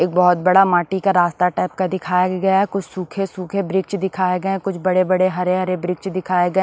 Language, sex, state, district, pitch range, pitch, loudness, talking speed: Hindi, female, Maharashtra, Washim, 180-190 Hz, 185 Hz, -19 LUFS, 215 wpm